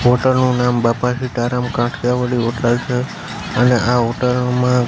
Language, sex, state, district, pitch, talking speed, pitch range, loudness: Gujarati, male, Gujarat, Gandhinagar, 125 Hz, 145 wpm, 120-125 Hz, -17 LUFS